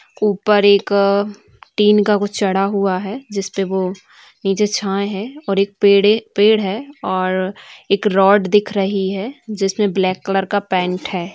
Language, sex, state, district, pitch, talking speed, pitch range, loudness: Hindi, female, Bihar, Saran, 200 Hz, 160 wpm, 195-210 Hz, -17 LUFS